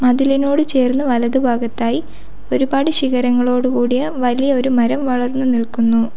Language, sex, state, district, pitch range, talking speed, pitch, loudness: Malayalam, female, Kerala, Kollam, 245-270 Hz, 95 wpm, 250 Hz, -16 LUFS